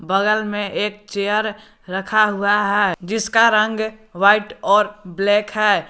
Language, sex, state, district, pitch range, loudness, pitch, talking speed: Hindi, male, Jharkhand, Garhwa, 200-215 Hz, -18 LUFS, 210 Hz, 130 wpm